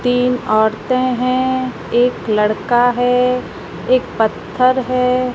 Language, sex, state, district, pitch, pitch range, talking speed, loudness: Hindi, female, Rajasthan, Jaisalmer, 250 Hz, 240-255 Hz, 100 wpm, -16 LUFS